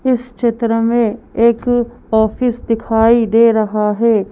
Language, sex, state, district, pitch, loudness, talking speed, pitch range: Hindi, female, Madhya Pradesh, Bhopal, 230 Hz, -14 LUFS, 125 wpm, 220-235 Hz